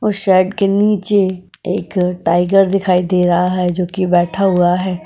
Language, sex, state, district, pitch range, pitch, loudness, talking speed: Hindi, female, Uttar Pradesh, Budaun, 180-195 Hz, 185 Hz, -15 LUFS, 155 wpm